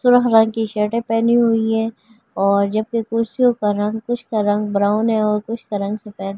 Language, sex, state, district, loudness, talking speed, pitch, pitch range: Hindi, female, Delhi, New Delhi, -18 LUFS, 195 wpm, 225 Hz, 210-230 Hz